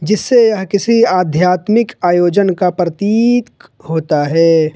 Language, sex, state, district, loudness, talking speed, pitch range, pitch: Hindi, male, Jharkhand, Ranchi, -13 LUFS, 115 wpm, 170-220 Hz, 185 Hz